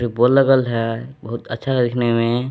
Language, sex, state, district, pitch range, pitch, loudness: Hindi, male, Jharkhand, Palamu, 115-130 Hz, 120 Hz, -18 LUFS